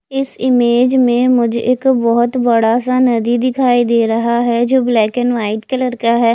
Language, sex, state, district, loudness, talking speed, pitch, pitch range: Hindi, female, Odisha, Nuapada, -14 LUFS, 190 wpm, 240 Hz, 235-255 Hz